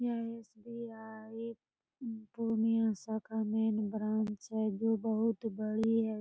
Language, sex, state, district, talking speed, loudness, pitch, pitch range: Hindi, female, Bihar, Purnia, 105 wpm, -35 LUFS, 220 Hz, 215-230 Hz